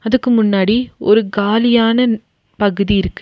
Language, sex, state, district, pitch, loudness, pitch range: Tamil, female, Tamil Nadu, Nilgiris, 220 Hz, -14 LUFS, 205-240 Hz